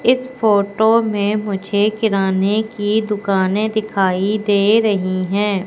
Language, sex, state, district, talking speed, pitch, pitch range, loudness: Hindi, female, Madhya Pradesh, Katni, 115 wpm, 205 Hz, 195-220 Hz, -17 LUFS